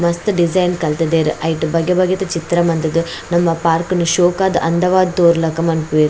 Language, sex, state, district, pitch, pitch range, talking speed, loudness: Tulu, female, Karnataka, Dakshina Kannada, 170 Hz, 165-180 Hz, 160 wpm, -15 LUFS